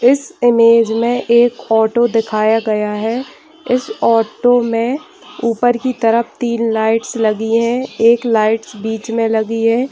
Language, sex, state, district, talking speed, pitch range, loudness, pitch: Hindi, female, Bihar, Kishanganj, 145 wpm, 225-240 Hz, -15 LUFS, 230 Hz